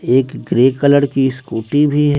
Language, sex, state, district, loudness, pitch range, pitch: Hindi, male, Bihar, West Champaran, -15 LUFS, 130-145 Hz, 135 Hz